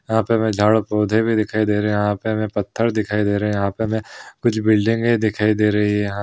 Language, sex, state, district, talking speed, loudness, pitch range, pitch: Hindi, male, Bihar, Madhepura, 260 wpm, -19 LUFS, 105-110 Hz, 110 Hz